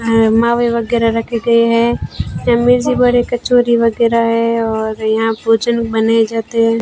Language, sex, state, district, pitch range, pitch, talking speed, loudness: Hindi, female, Rajasthan, Bikaner, 225-235 Hz, 230 Hz, 140 wpm, -14 LUFS